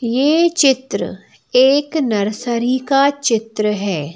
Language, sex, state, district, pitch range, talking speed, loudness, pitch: Hindi, female, Madhya Pradesh, Bhopal, 215-280 Hz, 100 wpm, -16 LUFS, 255 Hz